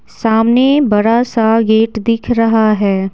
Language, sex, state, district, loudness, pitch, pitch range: Hindi, female, Bihar, Patna, -12 LUFS, 225 Hz, 220-230 Hz